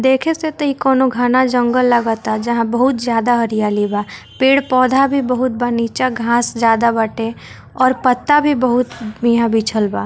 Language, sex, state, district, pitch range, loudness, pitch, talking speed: Bhojpuri, female, Bihar, Muzaffarpur, 230-260 Hz, -15 LUFS, 245 Hz, 160 wpm